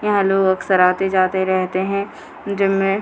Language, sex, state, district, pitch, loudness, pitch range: Hindi, female, Bihar, Purnia, 195 Hz, -18 LUFS, 185-195 Hz